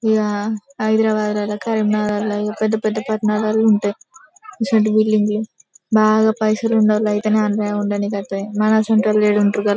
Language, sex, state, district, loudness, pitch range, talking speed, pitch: Telugu, female, Telangana, Karimnagar, -18 LUFS, 210-215 Hz, 130 wpm, 215 Hz